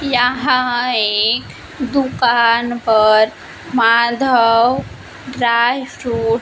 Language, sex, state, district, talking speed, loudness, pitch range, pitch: Hindi, female, Maharashtra, Gondia, 75 wpm, -15 LUFS, 230-255 Hz, 240 Hz